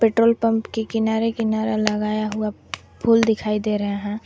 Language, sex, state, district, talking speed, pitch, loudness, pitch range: Hindi, female, Jharkhand, Garhwa, 170 wpm, 220 Hz, -21 LUFS, 210-225 Hz